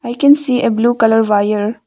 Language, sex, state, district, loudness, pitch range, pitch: English, female, Arunachal Pradesh, Longding, -13 LUFS, 215-250 Hz, 235 Hz